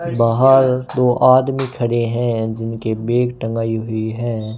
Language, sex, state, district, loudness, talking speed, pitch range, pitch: Hindi, male, Rajasthan, Bikaner, -17 LUFS, 130 wpm, 115-125 Hz, 120 Hz